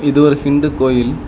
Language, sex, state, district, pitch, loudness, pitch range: Tamil, male, Tamil Nadu, Kanyakumari, 145 Hz, -13 LUFS, 130-145 Hz